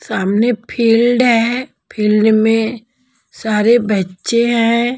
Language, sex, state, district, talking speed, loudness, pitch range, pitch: Hindi, female, Bihar, Patna, 95 wpm, -14 LUFS, 215-240 Hz, 230 Hz